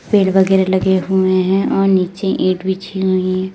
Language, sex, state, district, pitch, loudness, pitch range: Hindi, female, Uttar Pradesh, Lalitpur, 190 Hz, -15 LUFS, 185-190 Hz